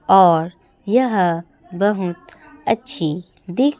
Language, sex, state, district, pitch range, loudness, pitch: Hindi, female, Chhattisgarh, Raipur, 175-250 Hz, -18 LUFS, 190 Hz